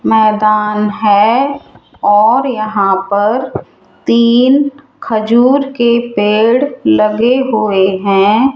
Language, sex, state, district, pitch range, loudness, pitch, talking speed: Hindi, female, Rajasthan, Jaipur, 210-260 Hz, -11 LUFS, 225 Hz, 85 wpm